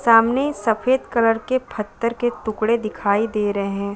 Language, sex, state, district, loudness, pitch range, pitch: Hindi, female, Chhattisgarh, Balrampur, -20 LUFS, 210-240 Hz, 225 Hz